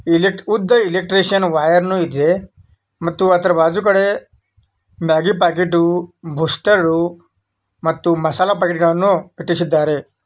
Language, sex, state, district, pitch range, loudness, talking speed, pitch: Kannada, male, Karnataka, Belgaum, 160-185 Hz, -16 LUFS, 100 wpm, 170 Hz